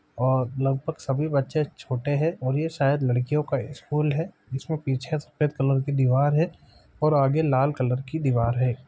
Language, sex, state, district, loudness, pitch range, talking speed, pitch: Maithili, male, Bihar, Supaul, -25 LUFS, 130-150 Hz, 180 wpm, 140 Hz